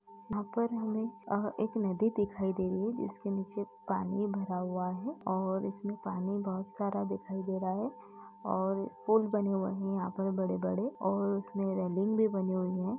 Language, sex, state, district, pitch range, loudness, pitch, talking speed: Hindi, female, Uttar Pradesh, Etah, 185-210 Hz, -34 LUFS, 195 Hz, 200 wpm